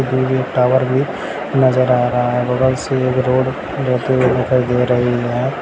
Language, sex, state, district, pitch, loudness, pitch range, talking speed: Hindi, male, Bihar, Sitamarhi, 130 Hz, -16 LUFS, 125-130 Hz, 170 wpm